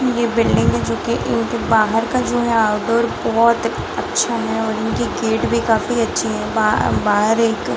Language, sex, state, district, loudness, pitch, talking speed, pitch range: Hindi, female, Bihar, Muzaffarpur, -17 LUFS, 230 Hz, 185 wpm, 225-235 Hz